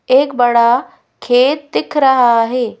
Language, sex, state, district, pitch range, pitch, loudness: Hindi, female, Madhya Pradesh, Bhopal, 240-275 Hz, 255 Hz, -13 LUFS